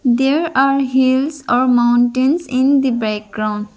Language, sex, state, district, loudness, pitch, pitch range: English, female, Arunachal Pradesh, Lower Dibang Valley, -15 LUFS, 255 Hz, 240-275 Hz